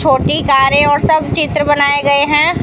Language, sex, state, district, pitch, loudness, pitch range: Hindi, female, Rajasthan, Bikaner, 290 Hz, -11 LUFS, 285-295 Hz